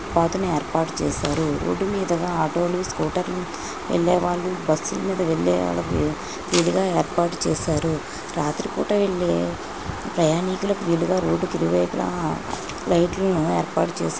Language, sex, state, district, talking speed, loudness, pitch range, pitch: Telugu, female, Andhra Pradesh, Srikakulam, 120 wpm, -23 LUFS, 155-180 Hz, 170 Hz